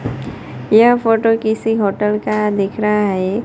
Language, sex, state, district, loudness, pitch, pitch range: Hindi, female, Gujarat, Gandhinagar, -15 LUFS, 210 Hz, 205-225 Hz